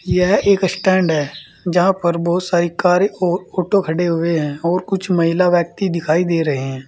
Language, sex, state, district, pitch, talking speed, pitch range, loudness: Hindi, male, Uttar Pradesh, Saharanpur, 175 Hz, 190 wpm, 165-185 Hz, -17 LUFS